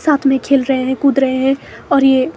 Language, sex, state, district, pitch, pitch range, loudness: Hindi, female, Himachal Pradesh, Shimla, 270 Hz, 265-275 Hz, -14 LUFS